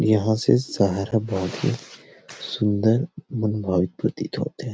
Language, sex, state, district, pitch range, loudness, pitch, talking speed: Chhattisgarhi, male, Chhattisgarh, Rajnandgaon, 95-110 Hz, -23 LUFS, 105 Hz, 115 wpm